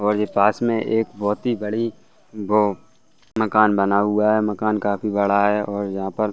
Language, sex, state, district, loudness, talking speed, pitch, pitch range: Hindi, male, Bihar, Saran, -20 LUFS, 190 wpm, 105 Hz, 100-110 Hz